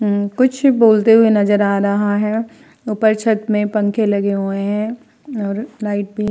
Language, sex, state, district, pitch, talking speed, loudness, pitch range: Hindi, female, Uttar Pradesh, Hamirpur, 210 Hz, 180 wpm, -16 LUFS, 205-225 Hz